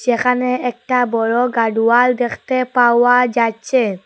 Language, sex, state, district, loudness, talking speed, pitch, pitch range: Bengali, female, Assam, Hailakandi, -15 LUFS, 105 wpm, 245 Hz, 230-250 Hz